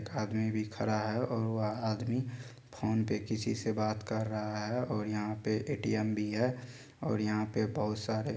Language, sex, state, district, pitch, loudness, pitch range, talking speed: Maithili, male, Bihar, Supaul, 110 Hz, -34 LUFS, 105-120 Hz, 185 wpm